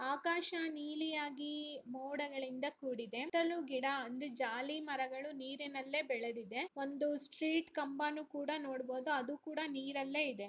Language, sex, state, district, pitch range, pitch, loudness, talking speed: Kannada, female, Karnataka, Bellary, 265-300 Hz, 285 Hz, -39 LUFS, 110 wpm